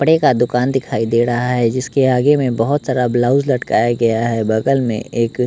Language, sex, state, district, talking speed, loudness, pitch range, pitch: Hindi, male, Bihar, West Champaran, 210 wpm, -16 LUFS, 115-135 Hz, 125 Hz